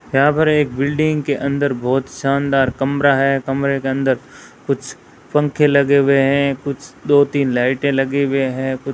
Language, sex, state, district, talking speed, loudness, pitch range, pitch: Hindi, female, Rajasthan, Bikaner, 180 wpm, -17 LUFS, 135-140 Hz, 140 Hz